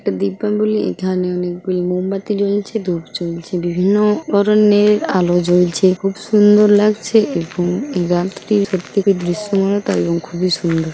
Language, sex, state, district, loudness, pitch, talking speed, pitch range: Bengali, female, West Bengal, Paschim Medinipur, -16 LUFS, 190 Hz, 110 wpm, 175-205 Hz